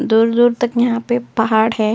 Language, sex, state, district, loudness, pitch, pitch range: Hindi, female, Uttar Pradesh, Jyotiba Phule Nagar, -16 LUFS, 230 Hz, 220-240 Hz